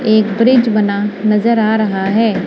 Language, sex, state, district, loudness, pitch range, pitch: Hindi, female, Punjab, Kapurthala, -13 LUFS, 205-225 Hz, 215 Hz